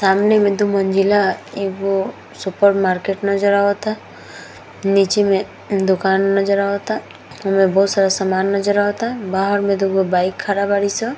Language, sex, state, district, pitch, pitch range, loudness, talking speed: Bhojpuri, female, Bihar, Gopalganj, 195 Hz, 195-200 Hz, -17 LUFS, 165 wpm